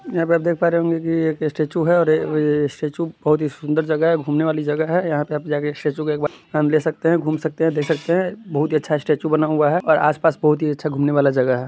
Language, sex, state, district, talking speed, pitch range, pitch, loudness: Hindi, male, Bihar, East Champaran, 280 wpm, 150-165 Hz, 155 Hz, -19 LUFS